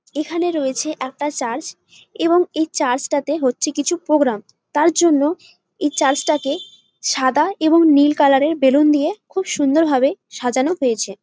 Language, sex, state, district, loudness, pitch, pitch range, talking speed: Bengali, female, West Bengal, Jalpaiguri, -18 LUFS, 295 Hz, 270-320 Hz, 160 wpm